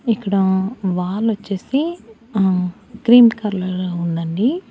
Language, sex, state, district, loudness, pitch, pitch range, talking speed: Telugu, female, Andhra Pradesh, Annamaya, -18 LUFS, 205 Hz, 185-230 Hz, 100 wpm